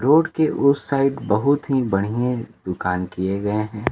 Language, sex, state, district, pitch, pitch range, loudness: Hindi, male, Bihar, Kaimur, 120 Hz, 100-140 Hz, -21 LUFS